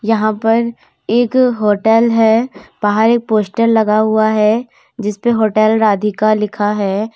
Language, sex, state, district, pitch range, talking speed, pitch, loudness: Hindi, female, Uttar Pradesh, Lalitpur, 210-230 Hz, 135 wpm, 220 Hz, -14 LUFS